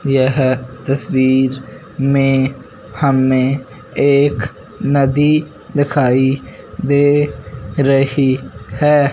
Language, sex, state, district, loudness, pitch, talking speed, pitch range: Hindi, male, Punjab, Fazilka, -15 LUFS, 135 Hz, 65 wpm, 130-140 Hz